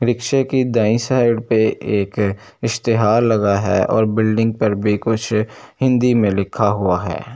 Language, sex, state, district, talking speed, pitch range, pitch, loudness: Hindi, male, Delhi, New Delhi, 155 wpm, 105-115 Hz, 110 Hz, -17 LUFS